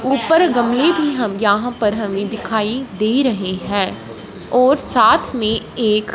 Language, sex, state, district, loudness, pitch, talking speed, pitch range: Hindi, female, Punjab, Fazilka, -16 LUFS, 225 Hz, 145 wpm, 210-260 Hz